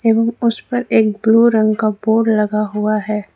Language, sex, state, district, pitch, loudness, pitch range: Hindi, female, Jharkhand, Ranchi, 220 Hz, -15 LUFS, 215-230 Hz